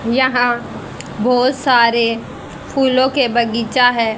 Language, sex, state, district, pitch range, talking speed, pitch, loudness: Hindi, female, Haryana, Rohtak, 235-260 Hz, 100 wpm, 245 Hz, -15 LUFS